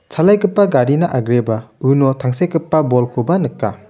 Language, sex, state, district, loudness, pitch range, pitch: Garo, male, Meghalaya, West Garo Hills, -15 LUFS, 120-170 Hz, 135 Hz